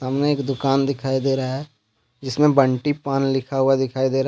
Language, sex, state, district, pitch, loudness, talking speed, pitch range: Hindi, male, Jharkhand, Deoghar, 135 Hz, -21 LUFS, 225 wpm, 130-140 Hz